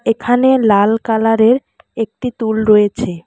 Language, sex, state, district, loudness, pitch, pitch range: Bengali, female, West Bengal, Alipurduar, -14 LUFS, 225 Hz, 215-240 Hz